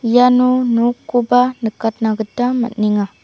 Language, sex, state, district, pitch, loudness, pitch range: Garo, female, Meghalaya, South Garo Hills, 240 Hz, -16 LUFS, 220-250 Hz